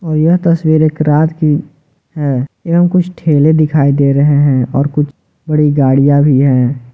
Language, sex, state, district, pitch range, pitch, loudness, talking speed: Hindi, male, Jharkhand, Ranchi, 140-155 Hz, 150 Hz, -11 LUFS, 175 wpm